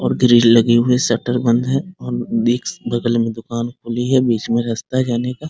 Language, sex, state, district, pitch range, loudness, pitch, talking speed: Hindi, male, Bihar, Muzaffarpur, 115-125 Hz, -17 LUFS, 120 Hz, 240 wpm